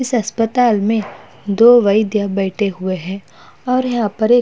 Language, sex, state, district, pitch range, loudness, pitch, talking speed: Hindi, female, Uttar Pradesh, Hamirpur, 200-240 Hz, -16 LUFS, 215 Hz, 135 wpm